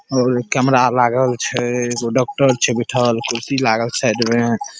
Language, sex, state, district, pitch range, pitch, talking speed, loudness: Maithili, male, Bihar, Saharsa, 120-130 Hz, 125 Hz, 175 wpm, -17 LUFS